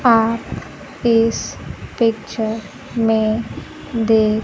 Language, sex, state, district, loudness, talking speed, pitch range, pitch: Hindi, female, Bihar, Kaimur, -19 LUFS, 65 wpm, 220-230 Hz, 225 Hz